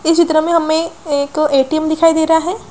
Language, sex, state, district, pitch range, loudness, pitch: Hindi, female, Bihar, Gaya, 310-330 Hz, -14 LUFS, 320 Hz